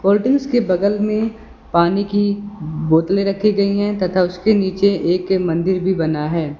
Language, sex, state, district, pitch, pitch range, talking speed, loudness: Hindi, male, Uttar Pradesh, Lucknow, 195 Hz, 175-205 Hz, 175 wpm, -18 LUFS